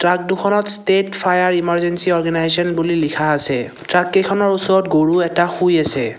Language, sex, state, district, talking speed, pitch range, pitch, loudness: Assamese, male, Assam, Kamrup Metropolitan, 155 wpm, 165-190 Hz, 175 Hz, -16 LUFS